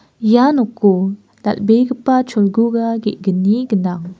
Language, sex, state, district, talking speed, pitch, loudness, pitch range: Garo, female, Meghalaya, West Garo Hills, 85 wpm, 215 Hz, -15 LUFS, 200-235 Hz